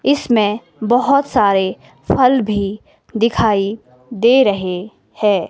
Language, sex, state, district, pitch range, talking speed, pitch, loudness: Hindi, female, Himachal Pradesh, Shimla, 200-245 Hz, 100 wpm, 215 Hz, -16 LUFS